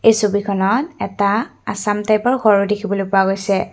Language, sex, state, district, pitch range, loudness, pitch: Assamese, female, Assam, Kamrup Metropolitan, 200-215 Hz, -17 LUFS, 205 Hz